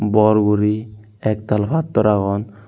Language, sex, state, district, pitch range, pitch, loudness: Chakma, male, Tripura, Unakoti, 105-110 Hz, 105 Hz, -18 LUFS